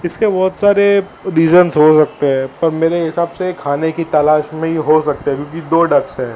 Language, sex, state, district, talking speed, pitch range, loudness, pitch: Hindi, male, Maharashtra, Mumbai Suburban, 210 wpm, 150-175 Hz, -14 LUFS, 165 Hz